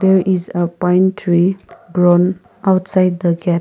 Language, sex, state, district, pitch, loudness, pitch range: English, male, Nagaland, Kohima, 180 Hz, -15 LUFS, 175-185 Hz